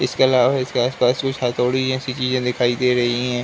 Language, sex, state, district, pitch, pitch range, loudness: Hindi, male, Uttar Pradesh, Ghazipur, 125 Hz, 125-130 Hz, -19 LUFS